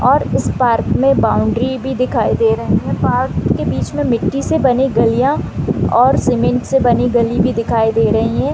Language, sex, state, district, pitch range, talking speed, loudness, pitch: Hindi, female, Chhattisgarh, Raigarh, 230-265 Hz, 195 wpm, -15 LUFS, 245 Hz